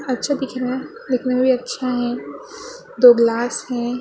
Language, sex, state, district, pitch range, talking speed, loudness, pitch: Hindi, female, Maharashtra, Gondia, 245-270 Hz, 180 wpm, -19 LUFS, 255 Hz